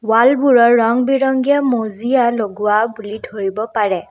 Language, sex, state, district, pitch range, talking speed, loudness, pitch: Assamese, female, Assam, Kamrup Metropolitan, 215-255 Hz, 115 wpm, -15 LUFS, 230 Hz